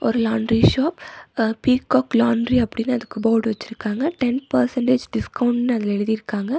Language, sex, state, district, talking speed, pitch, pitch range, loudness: Tamil, female, Tamil Nadu, Nilgiris, 135 wpm, 235 Hz, 225-255 Hz, -20 LUFS